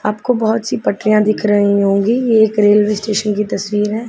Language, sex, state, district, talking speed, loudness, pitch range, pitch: Hindi, female, Punjab, Pathankot, 205 wpm, -14 LUFS, 210-220 Hz, 210 Hz